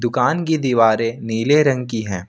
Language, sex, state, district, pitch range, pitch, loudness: Hindi, male, Jharkhand, Ranchi, 115-140 Hz, 120 Hz, -18 LUFS